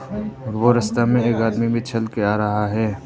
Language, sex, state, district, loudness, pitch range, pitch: Hindi, male, Arunachal Pradesh, Papum Pare, -20 LUFS, 110-120 Hz, 115 Hz